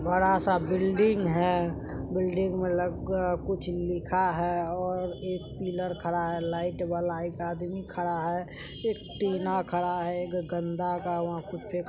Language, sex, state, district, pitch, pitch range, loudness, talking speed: Maithili, female, Bihar, Supaul, 180 Hz, 175-185 Hz, -29 LUFS, 165 wpm